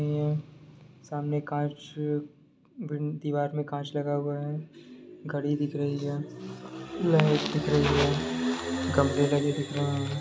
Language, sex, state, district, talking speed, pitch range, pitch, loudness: Hindi, male, Jharkhand, Jamtara, 135 wpm, 125-150 Hz, 145 Hz, -29 LUFS